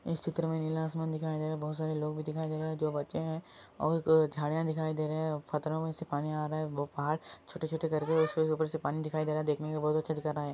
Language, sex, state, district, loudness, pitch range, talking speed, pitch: Hindi, male, Andhra Pradesh, Anantapur, -33 LUFS, 150-160 Hz, 290 wpm, 155 Hz